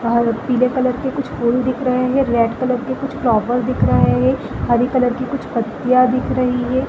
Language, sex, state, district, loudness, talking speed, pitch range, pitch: Hindi, female, Chhattisgarh, Balrampur, -17 LUFS, 225 wpm, 240-260 Hz, 255 Hz